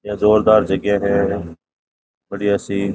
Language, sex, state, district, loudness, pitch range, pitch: Rajasthani, male, Rajasthan, Nagaur, -17 LUFS, 100-105 Hz, 100 Hz